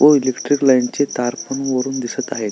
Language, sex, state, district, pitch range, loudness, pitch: Marathi, male, Maharashtra, Solapur, 125-135 Hz, -18 LUFS, 130 Hz